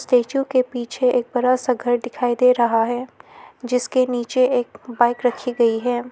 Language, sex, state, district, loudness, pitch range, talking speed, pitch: Hindi, female, Arunachal Pradesh, Lower Dibang Valley, -20 LUFS, 240-255 Hz, 175 wpm, 245 Hz